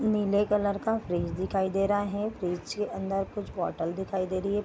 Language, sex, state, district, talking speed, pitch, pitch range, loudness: Hindi, female, Bihar, Darbhanga, 220 wpm, 200 Hz, 190-210 Hz, -29 LUFS